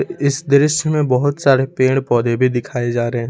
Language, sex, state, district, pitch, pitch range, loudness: Hindi, male, Jharkhand, Ranchi, 135 Hz, 120-145 Hz, -16 LUFS